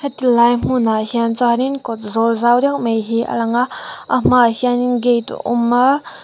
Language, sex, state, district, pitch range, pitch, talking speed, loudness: Mizo, female, Mizoram, Aizawl, 230-250 Hz, 240 Hz, 200 wpm, -16 LUFS